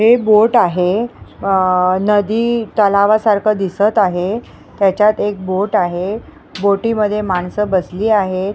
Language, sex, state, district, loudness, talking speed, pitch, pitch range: Marathi, female, Maharashtra, Mumbai Suburban, -15 LUFS, 120 wpm, 205 Hz, 185-215 Hz